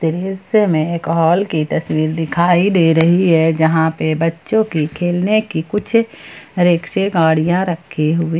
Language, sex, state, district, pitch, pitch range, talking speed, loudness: Hindi, female, Jharkhand, Ranchi, 165 Hz, 160-185 Hz, 150 wpm, -15 LUFS